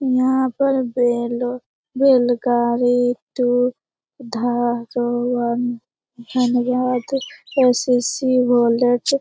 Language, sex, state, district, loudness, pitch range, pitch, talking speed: Hindi, female, Bihar, Lakhisarai, -19 LUFS, 240-255 Hz, 245 Hz, 50 wpm